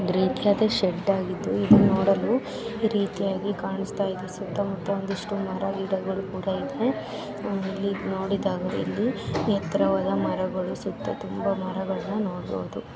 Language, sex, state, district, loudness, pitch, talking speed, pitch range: Kannada, female, Karnataka, Gulbarga, -26 LUFS, 195 Hz, 110 wpm, 190-200 Hz